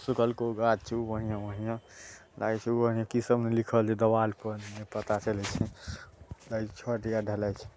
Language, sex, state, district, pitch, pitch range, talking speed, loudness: Maithili, male, Bihar, Saharsa, 110 Hz, 105-115 Hz, 55 wpm, -31 LUFS